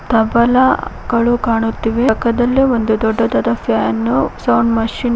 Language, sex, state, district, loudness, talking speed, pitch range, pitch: Kannada, female, Karnataka, Koppal, -15 LUFS, 105 wpm, 220-240 Hz, 225 Hz